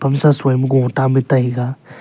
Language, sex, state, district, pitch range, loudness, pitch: Wancho, male, Arunachal Pradesh, Longding, 130-135 Hz, -16 LUFS, 135 Hz